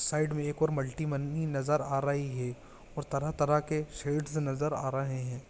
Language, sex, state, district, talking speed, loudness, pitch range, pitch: Hindi, male, Chhattisgarh, Bilaspur, 205 wpm, -32 LUFS, 135-150 Hz, 145 Hz